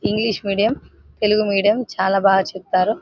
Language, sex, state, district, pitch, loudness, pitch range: Telugu, female, Telangana, Nalgonda, 205 Hz, -19 LUFS, 190-215 Hz